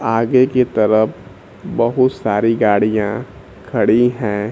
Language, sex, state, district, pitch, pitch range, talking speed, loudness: Hindi, male, Bihar, Kaimur, 115 Hz, 105-125 Hz, 105 wpm, -16 LUFS